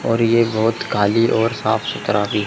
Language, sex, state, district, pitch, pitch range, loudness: Hindi, male, Chandigarh, Chandigarh, 110 Hz, 105-115 Hz, -18 LUFS